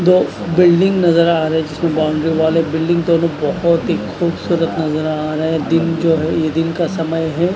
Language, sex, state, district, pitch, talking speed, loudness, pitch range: Hindi, male, Punjab, Kapurthala, 165 Hz, 215 wpm, -16 LUFS, 160-170 Hz